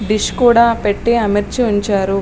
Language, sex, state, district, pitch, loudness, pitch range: Telugu, female, Andhra Pradesh, Srikakulam, 215 Hz, -14 LUFS, 205-235 Hz